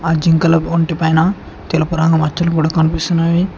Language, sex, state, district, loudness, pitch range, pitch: Telugu, male, Telangana, Hyderabad, -15 LUFS, 160-165 Hz, 165 Hz